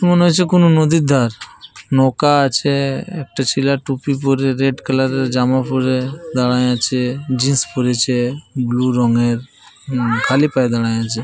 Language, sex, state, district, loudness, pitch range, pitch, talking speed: Bengali, male, Jharkhand, Jamtara, -16 LUFS, 125-140 Hz, 130 Hz, 150 wpm